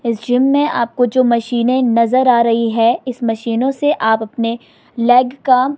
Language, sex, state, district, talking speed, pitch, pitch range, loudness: Hindi, female, Himachal Pradesh, Shimla, 175 wpm, 245 Hz, 230-255 Hz, -15 LUFS